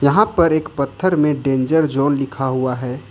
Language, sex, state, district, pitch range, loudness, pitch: Hindi, male, Jharkhand, Ranchi, 135-155 Hz, -18 LUFS, 140 Hz